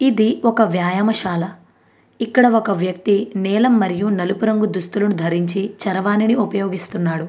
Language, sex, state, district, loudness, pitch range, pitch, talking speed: Telugu, female, Andhra Pradesh, Anantapur, -18 LUFS, 185-220 Hz, 200 Hz, 115 wpm